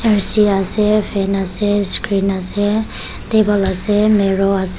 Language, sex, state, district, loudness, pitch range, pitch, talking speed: Nagamese, female, Nagaland, Kohima, -14 LUFS, 195-210 Hz, 205 Hz, 100 wpm